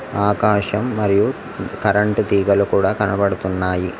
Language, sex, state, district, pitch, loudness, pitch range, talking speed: Telugu, male, Telangana, Mahabubabad, 100 Hz, -18 LUFS, 100-105 Hz, 90 wpm